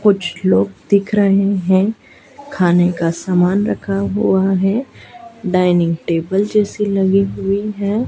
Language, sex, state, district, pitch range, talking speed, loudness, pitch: Hindi, male, Madhya Pradesh, Dhar, 180-205 Hz, 125 wpm, -16 LUFS, 195 Hz